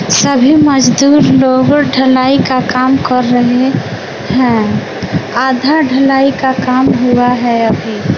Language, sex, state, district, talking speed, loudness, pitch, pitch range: Hindi, female, Bihar, West Champaran, 115 wpm, -10 LUFS, 260 Hz, 250-270 Hz